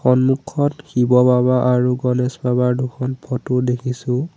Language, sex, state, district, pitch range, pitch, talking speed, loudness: Assamese, male, Assam, Sonitpur, 125-130 Hz, 125 Hz, 125 wpm, -18 LUFS